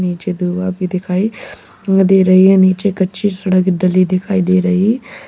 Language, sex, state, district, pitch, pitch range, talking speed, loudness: Hindi, male, Uttar Pradesh, Lalitpur, 185 Hz, 185-195 Hz, 160 wpm, -14 LUFS